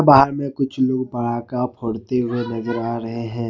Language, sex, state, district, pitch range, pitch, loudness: Hindi, male, Jharkhand, Ranchi, 115-130 Hz, 120 Hz, -21 LUFS